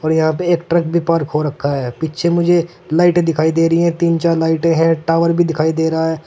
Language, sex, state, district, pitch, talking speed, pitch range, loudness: Hindi, male, Uttar Pradesh, Saharanpur, 165 Hz, 260 wpm, 160-170 Hz, -15 LUFS